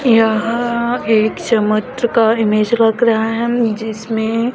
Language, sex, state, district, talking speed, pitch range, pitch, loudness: Hindi, female, Chhattisgarh, Raipur, 105 wpm, 220-235 Hz, 225 Hz, -15 LUFS